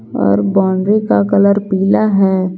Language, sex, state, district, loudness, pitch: Hindi, female, Jharkhand, Garhwa, -13 LUFS, 190 Hz